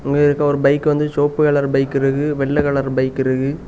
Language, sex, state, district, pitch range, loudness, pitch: Tamil, male, Tamil Nadu, Kanyakumari, 135-145 Hz, -17 LUFS, 140 Hz